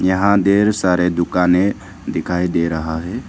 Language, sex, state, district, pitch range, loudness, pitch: Hindi, male, Arunachal Pradesh, Lower Dibang Valley, 85-100 Hz, -17 LUFS, 90 Hz